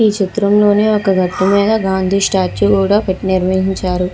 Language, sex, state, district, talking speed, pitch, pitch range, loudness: Telugu, female, Andhra Pradesh, Visakhapatnam, 130 wpm, 195 Hz, 190-205 Hz, -14 LUFS